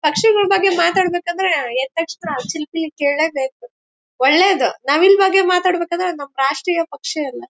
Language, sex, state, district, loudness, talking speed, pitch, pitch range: Kannada, female, Karnataka, Bellary, -17 LUFS, 135 wpm, 335 Hz, 285-370 Hz